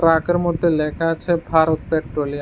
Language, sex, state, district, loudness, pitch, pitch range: Bengali, male, Tripura, West Tripura, -19 LUFS, 160 Hz, 155-170 Hz